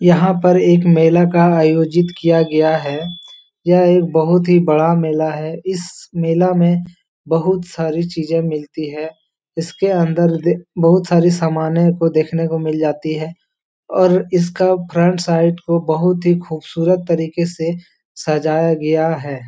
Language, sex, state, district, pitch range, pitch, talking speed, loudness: Hindi, male, Bihar, Jahanabad, 160-175 Hz, 170 Hz, 150 wpm, -15 LUFS